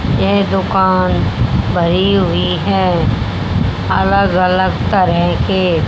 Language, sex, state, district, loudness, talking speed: Hindi, male, Haryana, Jhajjar, -14 LUFS, 90 wpm